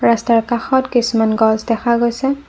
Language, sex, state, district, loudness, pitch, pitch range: Assamese, female, Assam, Kamrup Metropolitan, -16 LUFS, 235 Hz, 225-245 Hz